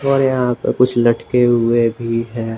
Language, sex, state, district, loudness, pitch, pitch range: Hindi, male, Jharkhand, Garhwa, -16 LUFS, 120 Hz, 115-125 Hz